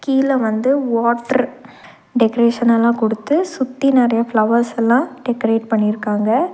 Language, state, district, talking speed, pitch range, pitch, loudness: Tamil, Tamil Nadu, Nilgiris, 90 wpm, 225-260 Hz, 235 Hz, -17 LUFS